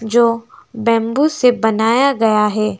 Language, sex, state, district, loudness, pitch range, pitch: Hindi, female, West Bengal, Alipurduar, -15 LUFS, 220-240 Hz, 230 Hz